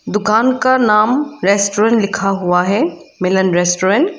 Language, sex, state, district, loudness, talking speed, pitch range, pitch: Hindi, female, Arunachal Pradesh, Lower Dibang Valley, -14 LUFS, 145 wpm, 190-235 Hz, 205 Hz